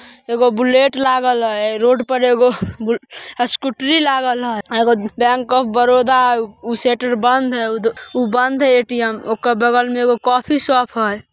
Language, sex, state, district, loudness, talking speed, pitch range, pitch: Magahi, female, Bihar, Samastipur, -15 LUFS, 150 wpm, 235-255 Hz, 245 Hz